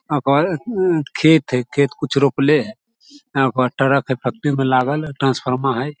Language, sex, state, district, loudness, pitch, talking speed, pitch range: Maithili, male, Bihar, Samastipur, -18 LUFS, 140 Hz, 190 wpm, 135-155 Hz